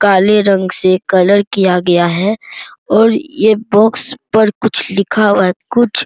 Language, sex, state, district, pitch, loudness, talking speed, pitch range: Hindi, male, Bihar, Araria, 205 Hz, -12 LUFS, 170 wpm, 185-220 Hz